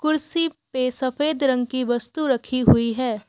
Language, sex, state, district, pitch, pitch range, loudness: Hindi, female, Assam, Kamrup Metropolitan, 260 Hz, 245-300 Hz, -22 LUFS